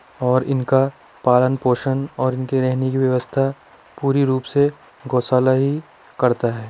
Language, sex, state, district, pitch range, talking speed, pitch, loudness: Hindi, male, Uttar Pradesh, Budaun, 125-135 Hz, 145 wpm, 130 Hz, -19 LUFS